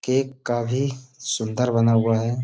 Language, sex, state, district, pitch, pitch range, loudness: Hindi, male, Uttar Pradesh, Budaun, 125 Hz, 115-130 Hz, -23 LUFS